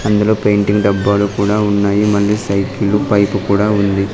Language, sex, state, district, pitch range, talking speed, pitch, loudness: Telugu, male, Andhra Pradesh, Sri Satya Sai, 100-105 Hz, 145 wpm, 100 Hz, -14 LUFS